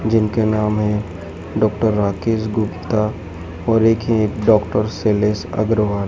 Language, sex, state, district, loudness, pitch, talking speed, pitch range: Hindi, male, Madhya Pradesh, Dhar, -18 LUFS, 105 Hz, 120 wpm, 100-110 Hz